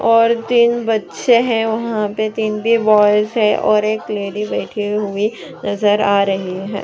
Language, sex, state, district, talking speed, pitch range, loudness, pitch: Hindi, female, Chhattisgarh, Raigarh, 165 wpm, 205-225 Hz, -16 LUFS, 215 Hz